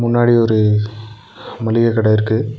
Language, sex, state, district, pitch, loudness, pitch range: Tamil, male, Tamil Nadu, Nilgiris, 110 Hz, -15 LUFS, 110-115 Hz